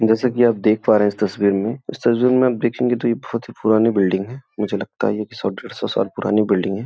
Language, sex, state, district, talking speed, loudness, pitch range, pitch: Hindi, male, Uttar Pradesh, Gorakhpur, 280 wpm, -19 LUFS, 105-120 Hz, 110 Hz